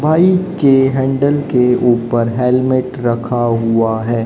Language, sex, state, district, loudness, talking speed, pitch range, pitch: Hindi, male, Haryana, Jhajjar, -14 LUFS, 125 wpm, 120-135 Hz, 125 Hz